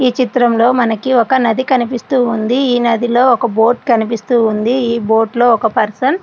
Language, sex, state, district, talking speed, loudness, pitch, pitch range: Telugu, female, Andhra Pradesh, Guntur, 165 wpm, -13 LUFS, 240 Hz, 230-255 Hz